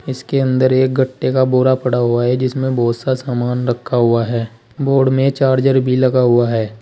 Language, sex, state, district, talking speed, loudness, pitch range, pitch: Hindi, male, Uttar Pradesh, Saharanpur, 200 wpm, -15 LUFS, 120-130 Hz, 130 Hz